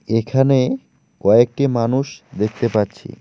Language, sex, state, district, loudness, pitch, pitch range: Bengali, male, West Bengal, Alipurduar, -18 LUFS, 120 Hz, 110-135 Hz